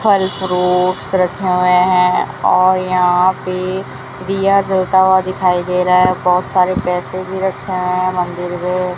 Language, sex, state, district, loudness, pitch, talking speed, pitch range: Hindi, female, Rajasthan, Bikaner, -15 LUFS, 185 Hz, 160 wpm, 180-185 Hz